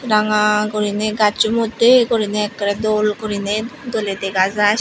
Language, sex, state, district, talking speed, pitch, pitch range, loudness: Chakma, female, Tripura, Unakoti, 135 wpm, 210 Hz, 205-220 Hz, -17 LUFS